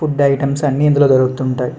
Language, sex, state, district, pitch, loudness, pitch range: Telugu, male, Andhra Pradesh, Srikakulam, 140 Hz, -14 LUFS, 130-145 Hz